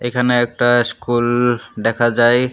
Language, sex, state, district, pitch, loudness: Bengali, male, Tripura, Unakoti, 120 Hz, -16 LUFS